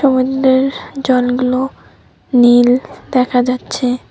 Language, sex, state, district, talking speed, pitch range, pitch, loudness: Bengali, female, West Bengal, Cooch Behar, 75 wpm, 250-265 Hz, 255 Hz, -14 LUFS